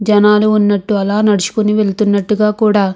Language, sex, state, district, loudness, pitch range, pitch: Telugu, female, Andhra Pradesh, Anantapur, -13 LUFS, 205-215 Hz, 210 Hz